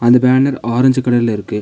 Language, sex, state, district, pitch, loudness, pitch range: Tamil, male, Tamil Nadu, Nilgiris, 120 Hz, -14 LUFS, 115-130 Hz